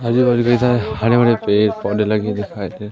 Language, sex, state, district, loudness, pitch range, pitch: Hindi, male, Madhya Pradesh, Umaria, -17 LUFS, 105-120 Hz, 110 Hz